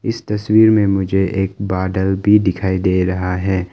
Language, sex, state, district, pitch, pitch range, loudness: Hindi, male, Arunachal Pradesh, Lower Dibang Valley, 95 Hz, 95-105 Hz, -16 LUFS